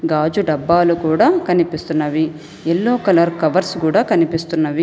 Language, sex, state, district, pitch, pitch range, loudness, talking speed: Telugu, female, Telangana, Hyderabad, 165 Hz, 155-175 Hz, -16 LUFS, 110 wpm